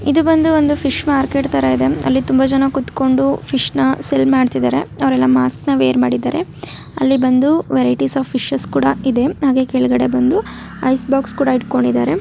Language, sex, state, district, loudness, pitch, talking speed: Kannada, female, Karnataka, Mysore, -15 LUFS, 250 Hz, 140 wpm